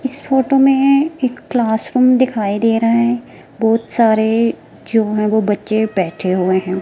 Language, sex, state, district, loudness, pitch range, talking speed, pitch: Hindi, female, Himachal Pradesh, Shimla, -15 LUFS, 215-255 Hz, 160 wpm, 225 Hz